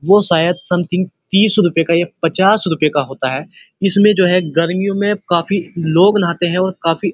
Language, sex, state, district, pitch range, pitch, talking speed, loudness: Hindi, male, Uttar Pradesh, Muzaffarnagar, 165-195 Hz, 180 Hz, 200 wpm, -15 LUFS